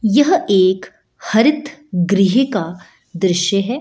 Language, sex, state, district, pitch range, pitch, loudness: Hindi, female, Bihar, Jahanabad, 185-270 Hz, 200 Hz, -16 LUFS